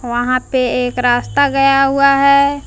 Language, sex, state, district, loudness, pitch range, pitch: Hindi, female, Jharkhand, Palamu, -13 LUFS, 250-275 Hz, 275 Hz